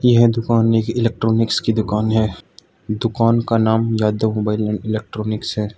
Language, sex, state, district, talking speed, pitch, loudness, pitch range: Hindi, male, Arunachal Pradesh, Lower Dibang Valley, 155 wpm, 110 Hz, -18 LUFS, 110-115 Hz